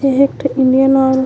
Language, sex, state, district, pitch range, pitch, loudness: Chhattisgarhi, female, Chhattisgarh, Korba, 265-275 Hz, 270 Hz, -13 LUFS